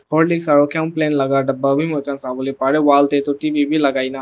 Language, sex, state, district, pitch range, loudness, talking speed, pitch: Nagamese, male, Nagaland, Dimapur, 135-155 Hz, -17 LUFS, 230 wpm, 145 Hz